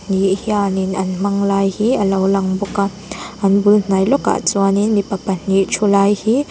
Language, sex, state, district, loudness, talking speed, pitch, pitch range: Mizo, female, Mizoram, Aizawl, -16 LUFS, 195 wpm, 200 Hz, 195-205 Hz